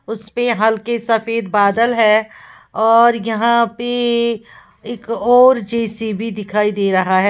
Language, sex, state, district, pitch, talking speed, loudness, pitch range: Hindi, female, Uttar Pradesh, Lalitpur, 225 Hz, 125 wpm, -15 LUFS, 215-235 Hz